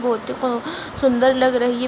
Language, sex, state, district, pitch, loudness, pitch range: Hindi, female, Uttar Pradesh, Jalaun, 255 Hz, -19 LUFS, 245-260 Hz